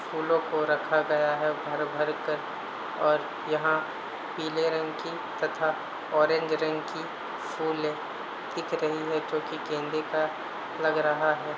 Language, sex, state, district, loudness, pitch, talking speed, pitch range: Hindi, male, Uttar Pradesh, Hamirpur, -29 LUFS, 155 Hz, 145 wpm, 150-155 Hz